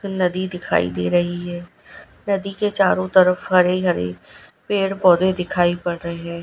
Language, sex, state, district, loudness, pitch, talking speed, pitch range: Hindi, female, Gujarat, Gandhinagar, -19 LUFS, 180 Hz, 160 wpm, 175-190 Hz